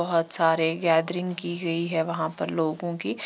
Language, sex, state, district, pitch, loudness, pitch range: Hindi, female, Bihar, Katihar, 165 Hz, -24 LUFS, 160-175 Hz